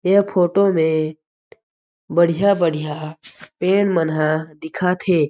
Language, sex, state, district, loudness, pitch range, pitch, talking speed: Chhattisgarhi, male, Chhattisgarh, Jashpur, -18 LUFS, 155-185 Hz, 170 Hz, 90 wpm